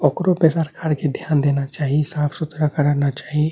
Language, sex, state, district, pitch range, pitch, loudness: Maithili, male, Bihar, Saharsa, 145-160 Hz, 150 Hz, -20 LUFS